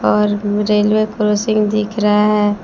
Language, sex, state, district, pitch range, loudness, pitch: Hindi, female, Jharkhand, Palamu, 205-210 Hz, -15 LUFS, 210 Hz